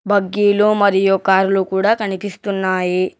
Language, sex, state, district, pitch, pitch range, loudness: Telugu, male, Telangana, Hyderabad, 195 Hz, 190-205 Hz, -16 LUFS